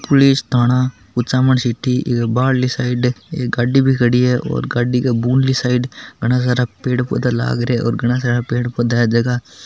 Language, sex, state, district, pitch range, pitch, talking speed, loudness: Hindi, male, Rajasthan, Nagaur, 120-130 Hz, 125 Hz, 190 wpm, -16 LUFS